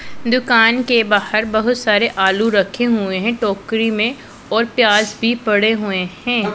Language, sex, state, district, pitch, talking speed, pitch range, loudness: Hindi, female, Punjab, Pathankot, 220 Hz, 155 wpm, 205-235 Hz, -16 LUFS